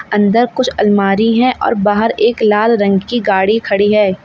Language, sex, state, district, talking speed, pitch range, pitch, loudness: Hindi, female, Uttar Pradesh, Lalitpur, 185 wpm, 200-230 Hz, 210 Hz, -12 LUFS